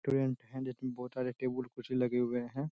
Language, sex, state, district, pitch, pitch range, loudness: Hindi, male, Bihar, Saharsa, 130 Hz, 125-130 Hz, -36 LUFS